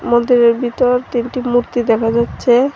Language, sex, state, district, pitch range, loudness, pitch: Bengali, female, Tripura, Dhalai, 235-250 Hz, -15 LUFS, 240 Hz